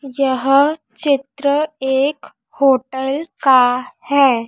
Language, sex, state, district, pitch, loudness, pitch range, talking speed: Hindi, female, Madhya Pradesh, Dhar, 275 Hz, -16 LUFS, 265-280 Hz, 80 wpm